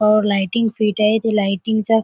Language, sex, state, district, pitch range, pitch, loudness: Marathi, female, Maharashtra, Chandrapur, 210-220 Hz, 215 Hz, -18 LUFS